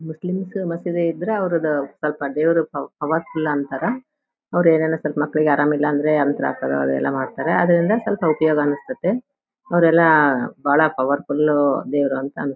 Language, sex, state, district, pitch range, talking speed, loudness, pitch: Kannada, female, Karnataka, Bellary, 145-175 Hz, 140 wpm, -20 LUFS, 155 Hz